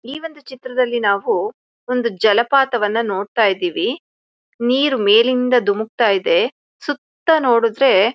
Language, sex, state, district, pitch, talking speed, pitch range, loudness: Kannada, female, Karnataka, Shimoga, 250 Hz, 105 wpm, 225-290 Hz, -17 LUFS